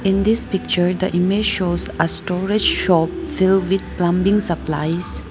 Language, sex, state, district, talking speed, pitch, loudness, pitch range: English, female, Arunachal Pradesh, Papum Pare, 145 wpm, 185 Hz, -19 LUFS, 175-195 Hz